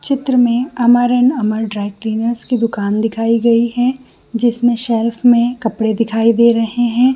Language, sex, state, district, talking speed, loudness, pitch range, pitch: Hindi, female, Chhattisgarh, Bilaspur, 170 wpm, -14 LUFS, 225-245 Hz, 235 Hz